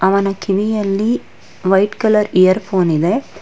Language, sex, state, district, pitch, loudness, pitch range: Kannada, female, Karnataka, Bangalore, 195 Hz, -15 LUFS, 185-210 Hz